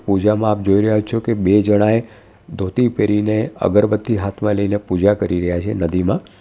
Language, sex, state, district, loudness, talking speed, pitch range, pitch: Gujarati, male, Gujarat, Valsad, -17 LUFS, 170 wpm, 100-105 Hz, 105 Hz